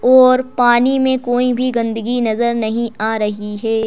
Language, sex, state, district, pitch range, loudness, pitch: Hindi, female, Madhya Pradesh, Bhopal, 225-255 Hz, -15 LUFS, 235 Hz